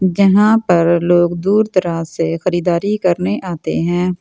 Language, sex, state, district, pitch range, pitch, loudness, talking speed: Hindi, female, Delhi, New Delhi, 170-190 Hz, 180 Hz, -15 LUFS, 155 wpm